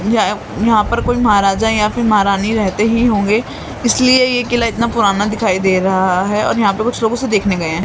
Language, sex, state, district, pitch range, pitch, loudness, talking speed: Hindi, female, Maharashtra, Mumbai Suburban, 200-235 Hz, 215 Hz, -14 LUFS, 215 wpm